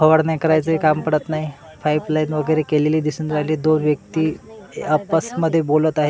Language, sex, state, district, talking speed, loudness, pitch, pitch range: Marathi, male, Maharashtra, Washim, 175 wpm, -19 LUFS, 155 Hz, 150-160 Hz